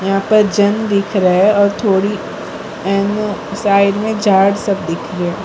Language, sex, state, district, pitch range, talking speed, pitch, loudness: Hindi, female, Gujarat, Valsad, 195-205 Hz, 175 wpm, 200 Hz, -14 LUFS